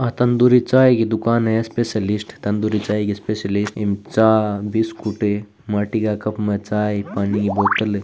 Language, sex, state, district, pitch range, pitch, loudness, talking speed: Hindi, female, Rajasthan, Churu, 105-110 Hz, 105 Hz, -19 LUFS, 165 wpm